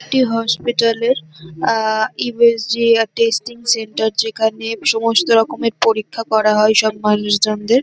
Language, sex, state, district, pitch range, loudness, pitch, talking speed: Bengali, female, West Bengal, North 24 Parganas, 215-230 Hz, -16 LUFS, 225 Hz, 100 wpm